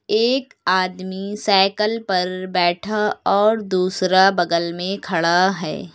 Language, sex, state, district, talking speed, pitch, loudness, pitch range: Hindi, female, Uttar Pradesh, Lucknow, 110 wpm, 190 Hz, -19 LUFS, 180-210 Hz